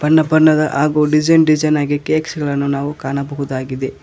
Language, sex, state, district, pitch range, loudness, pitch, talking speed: Kannada, male, Karnataka, Koppal, 140-155 Hz, -15 LUFS, 150 Hz, 150 wpm